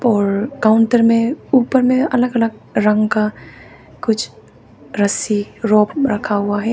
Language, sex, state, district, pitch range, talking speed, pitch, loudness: Hindi, female, Arunachal Pradesh, Papum Pare, 205-240 Hz, 125 wpm, 215 Hz, -16 LUFS